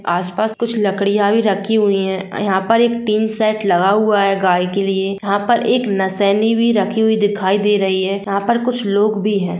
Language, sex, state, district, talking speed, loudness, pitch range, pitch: Hindi, female, Jharkhand, Jamtara, 225 wpm, -16 LUFS, 195-220 Hz, 205 Hz